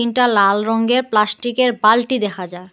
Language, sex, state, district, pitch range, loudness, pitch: Bengali, female, Assam, Hailakandi, 205-245 Hz, -16 LUFS, 225 Hz